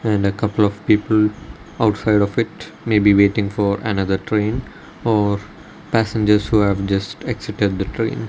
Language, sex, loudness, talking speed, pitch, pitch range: English, male, -19 LUFS, 160 wpm, 105 Hz, 100-110 Hz